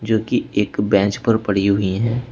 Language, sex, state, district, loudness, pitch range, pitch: Hindi, male, Uttar Pradesh, Shamli, -18 LUFS, 100-115 Hz, 105 Hz